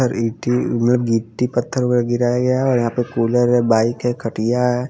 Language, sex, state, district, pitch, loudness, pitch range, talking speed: Hindi, female, Haryana, Charkhi Dadri, 120 Hz, -18 LUFS, 115-125 Hz, 210 wpm